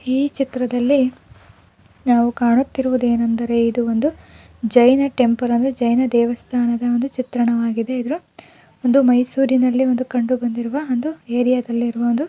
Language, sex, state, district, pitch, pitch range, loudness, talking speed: Kannada, female, Karnataka, Mysore, 245 Hz, 235-260 Hz, -18 LUFS, 115 wpm